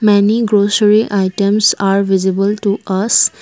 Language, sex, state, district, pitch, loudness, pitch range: English, female, Assam, Kamrup Metropolitan, 200 Hz, -13 LUFS, 195-210 Hz